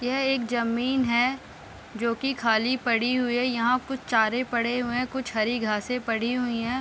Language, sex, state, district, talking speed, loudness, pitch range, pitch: Hindi, female, Bihar, Darbhanga, 195 wpm, -25 LUFS, 230-255 Hz, 245 Hz